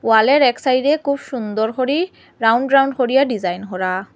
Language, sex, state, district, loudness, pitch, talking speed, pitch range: Bengali, female, Assam, Hailakandi, -17 LUFS, 255 Hz, 160 wpm, 220-275 Hz